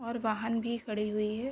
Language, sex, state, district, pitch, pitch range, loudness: Hindi, female, Uttar Pradesh, Ghazipur, 225 Hz, 210-235 Hz, -33 LUFS